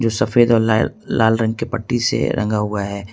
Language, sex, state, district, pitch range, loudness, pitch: Hindi, male, Jharkhand, Ranchi, 105-120 Hz, -18 LUFS, 115 Hz